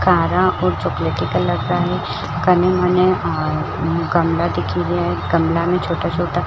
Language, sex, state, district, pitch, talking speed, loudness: Marwari, female, Rajasthan, Churu, 125 Hz, 150 wpm, -18 LUFS